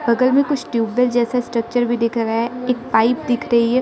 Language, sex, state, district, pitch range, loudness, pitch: Hindi, female, Arunachal Pradesh, Lower Dibang Valley, 230-250 Hz, -18 LUFS, 240 Hz